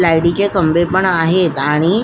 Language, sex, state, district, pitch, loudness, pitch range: Marathi, female, Maharashtra, Solapur, 175 Hz, -14 LUFS, 165-190 Hz